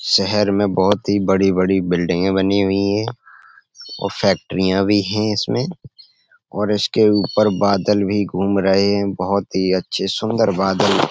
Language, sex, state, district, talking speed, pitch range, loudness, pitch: Hindi, male, Uttar Pradesh, Etah, 145 wpm, 95-105 Hz, -18 LUFS, 100 Hz